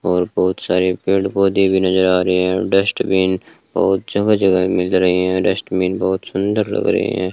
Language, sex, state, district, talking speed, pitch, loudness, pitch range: Hindi, male, Rajasthan, Bikaner, 195 wpm, 95 Hz, -17 LUFS, 90-95 Hz